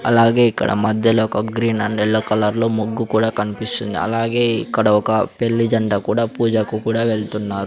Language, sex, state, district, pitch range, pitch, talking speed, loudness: Telugu, male, Andhra Pradesh, Sri Satya Sai, 105-115 Hz, 110 Hz, 155 wpm, -18 LUFS